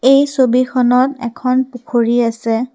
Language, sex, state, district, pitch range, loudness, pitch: Assamese, female, Assam, Kamrup Metropolitan, 235-260 Hz, -15 LUFS, 250 Hz